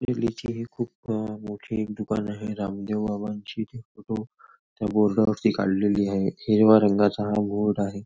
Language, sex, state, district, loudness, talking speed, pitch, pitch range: Marathi, male, Maharashtra, Nagpur, -25 LUFS, 150 wpm, 105 Hz, 105-110 Hz